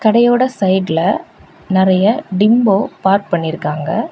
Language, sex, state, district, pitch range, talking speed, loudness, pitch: Tamil, female, Tamil Nadu, Kanyakumari, 185-220 Hz, 85 wpm, -14 LUFS, 195 Hz